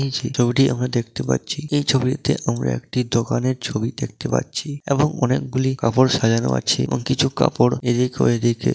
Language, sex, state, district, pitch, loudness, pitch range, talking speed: Bengali, male, West Bengal, Dakshin Dinajpur, 125 Hz, -20 LUFS, 115-135 Hz, 170 wpm